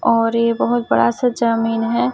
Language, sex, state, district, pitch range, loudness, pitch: Hindi, female, Chhattisgarh, Raipur, 145-235 Hz, -17 LUFS, 230 Hz